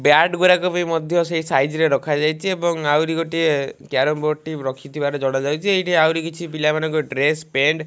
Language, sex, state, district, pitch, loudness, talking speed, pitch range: Odia, male, Odisha, Malkangiri, 155 Hz, -19 LUFS, 175 wpm, 145-165 Hz